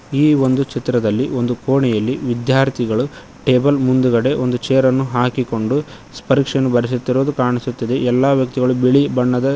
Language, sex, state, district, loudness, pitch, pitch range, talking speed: Kannada, male, Karnataka, Koppal, -17 LUFS, 130 Hz, 125-135 Hz, 115 wpm